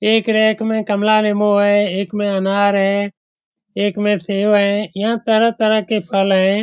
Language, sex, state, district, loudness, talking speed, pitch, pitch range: Hindi, male, Bihar, Saran, -16 LUFS, 170 wpm, 205 Hz, 200-215 Hz